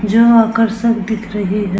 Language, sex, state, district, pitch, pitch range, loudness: Hindi, female, Bihar, Vaishali, 220 Hz, 210-225 Hz, -14 LUFS